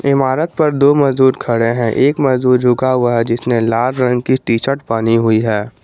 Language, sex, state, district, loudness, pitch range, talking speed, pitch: Hindi, male, Jharkhand, Garhwa, -14 LUFS, 115-135 Hz, 205 wpm, 125 Hz